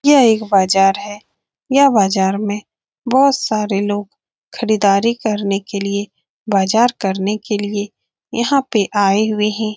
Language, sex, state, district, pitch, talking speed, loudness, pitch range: Hindi, female, Bihar, Saran, 210 Hz, 145 wpm, -16 LUFS, 200-225 Hz